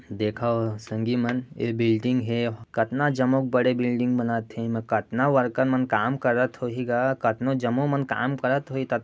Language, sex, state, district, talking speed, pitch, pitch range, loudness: Chhattisgarhi, male, Chhattisgarh, Raigarh, 150 wpm, 125 Hz, 115-130 Hz, -25 LUFS